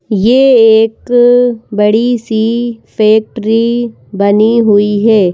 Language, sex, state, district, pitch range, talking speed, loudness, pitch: Hindi, female, Madhya Pradesh, Bhopal, 215-235 Hz, 90 wpm, -10 LUFS, 225 Hz